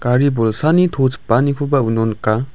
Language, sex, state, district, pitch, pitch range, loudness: Garo, male, Meghalaya, West Garo Hills, 130 Hz, 115-140 Hz, -16 LUFS